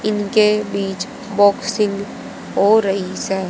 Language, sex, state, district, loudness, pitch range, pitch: Hindi, female, Haryana, Jhajjar, -18 LUFS, 195-215 Hz, 205 Hz